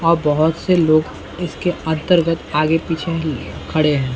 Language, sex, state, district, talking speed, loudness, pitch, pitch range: Hindi, male, Bihar, Saran, 145 wpm, -18 LUFS, 160 Hz, 155-165 Hz